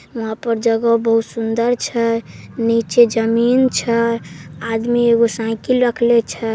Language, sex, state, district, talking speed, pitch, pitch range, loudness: Maithili, female, Bihar, Samastipur, 130 wpm, 230 Hz, 225-235 Hz, -17 LUFS